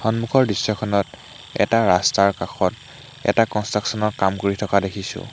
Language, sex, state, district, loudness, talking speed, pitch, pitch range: Assamese, male, Assam, Hailakandi, -20 LUFS, 135 wpm, 105 Hz, 100-115 Hz